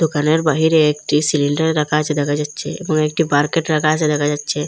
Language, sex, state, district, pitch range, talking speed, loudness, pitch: Bengali, female, Assam, Hailakandi, 150-160 Hz, 190 wpm, -17 LUFS, 150 Hz